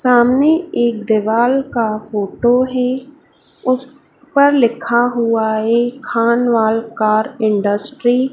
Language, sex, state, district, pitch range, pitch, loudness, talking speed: Hindi, female, Madhya Pradesh, Dhar, 225-255 Hz, 240 Hz, -15 LUFS, 110 wpm